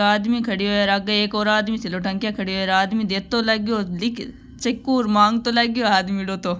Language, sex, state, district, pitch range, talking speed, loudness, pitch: Marwari, female, Rajasthan, Nagaur, 195-225 Hz, 220 wpm, -20 LUFS, 210 Hz